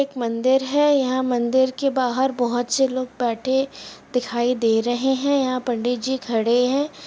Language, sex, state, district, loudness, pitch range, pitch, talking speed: Hindi, female, Uttar Pradesh, Muzaffarnagar, -21 LUFS, 245-265 Hz, 255 Hz, 185 wpm